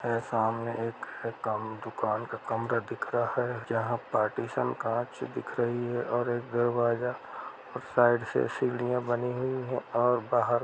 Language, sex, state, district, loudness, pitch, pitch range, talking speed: Hindi, male, Uttar Pradesh, Jalaun, -30 LUFS, 120 Hz, 115-125 Hz, 160 wpm